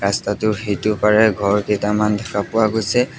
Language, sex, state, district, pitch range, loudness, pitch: Assamese, male, Assam, Sonitpur, 105-110 Hz, -18 LUFS, 105 Hz